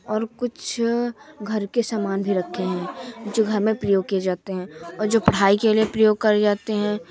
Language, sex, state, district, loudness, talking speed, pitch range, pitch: Hindi, male, Uttar Pradesh, Lucknow, -22 LUFS, 200 wpm, 195-220 Hz, 210 Hz